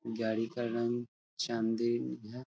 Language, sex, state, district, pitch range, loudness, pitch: Hindi, male, Bihar, Araria, 115-120 Hz, -35 LUFS, 115 Hz